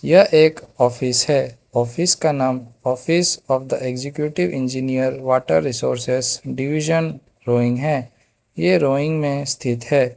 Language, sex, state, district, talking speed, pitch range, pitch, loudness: Hindi, male, Arunachal Pradesh, Lower Dibang Valley, 130 wpm, 125-150 Hz, 130 Hz, -19 LUFS